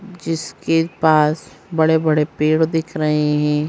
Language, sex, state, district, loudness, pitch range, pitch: Hindi, female, Madhya Pradesh, Bhopal, -18 LUFS, 150-165 Hz, 160 Hz